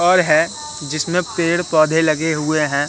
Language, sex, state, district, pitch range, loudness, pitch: Hindi, male, Madhya Pradesh, Katni, 150-170 Hz, -17 LUFS, 155 Hz